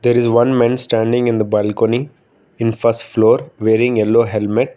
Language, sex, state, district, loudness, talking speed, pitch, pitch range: English, male, Karnataka, Bangalore, -15 LUFS, 175 wpm, 115 Hz, 110-120 Hz